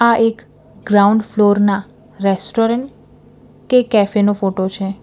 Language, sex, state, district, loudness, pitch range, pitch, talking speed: Gujarati, female, Gujarat, Valsad, -15 LUFS, 200-225 Hz, 205 Hz, 130 wpm